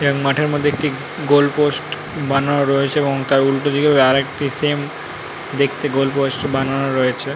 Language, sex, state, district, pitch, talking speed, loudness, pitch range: Bengali, male, West Bengal, North 24 Parganas, 140 Hz, 145 wpm, -17 LUFS, 135-145 Hz